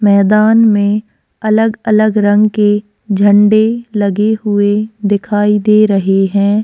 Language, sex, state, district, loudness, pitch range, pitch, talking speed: Hindi, female, Goa, North and South Goa, -11 LUFS, 205-215 Hz, 210 Hz, 110 wpm